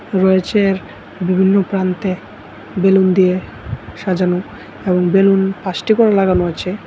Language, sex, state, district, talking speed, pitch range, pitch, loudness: Bengali, male, Tripura, West Tripura, 105 wpm, 180-195 Hz, 185 Hz, -15 LUFS